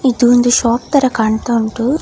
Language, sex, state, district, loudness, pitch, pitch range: Kannada, female, Karnataka, Dakshina Kannada, -13 LUFS, 240 Hz, 230-255 Hz